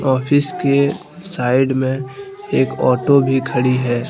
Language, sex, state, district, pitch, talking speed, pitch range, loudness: Hindi, male, Jharkhand, Deoghar, 135 Hz, 130 wpm, 130-145 Hz, -17 LUFS